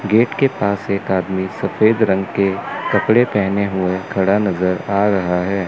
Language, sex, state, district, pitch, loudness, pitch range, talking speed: Hindi, male, Chandigarh, Chandigarh, 100 Hz, -17 LUFS, 95-105 Hz, 170 wpm